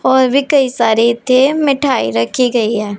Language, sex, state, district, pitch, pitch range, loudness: Hindi, male, Punjab, Pathankot, 250 Hz, 225-270 Hz, -13 LUFS